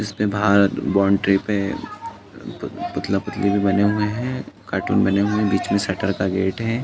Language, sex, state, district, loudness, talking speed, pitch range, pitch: Hindi, male, Uttar Pradesh, Jalaun, -20 LUFS, 165 wpm, 100-105 Hz, 100 Hz